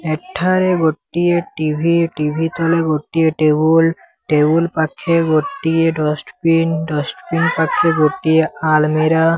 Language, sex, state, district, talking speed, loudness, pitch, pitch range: Odia, male, Odisha, Sambalpur, 95 wpm, -16 LUFS, 160 Hz, 155-165 Hz